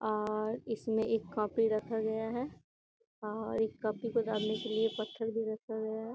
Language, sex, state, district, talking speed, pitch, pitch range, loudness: Hindi, female, Bihar, Gopalganj, 195 wpm, 220 Hz, 215-225 Hz, -35 LUFS